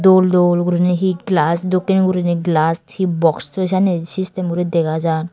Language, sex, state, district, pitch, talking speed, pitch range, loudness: Chakma, female, Tripura, Dhalai, 175 Hz, 170 wpm, 170-185 Hz, -17 LUFS